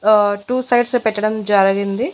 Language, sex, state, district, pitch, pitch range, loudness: Telugu, female, Andhra Pradesh, Annamaya, 215 Hz, 205-245 Hz, -16 LUFS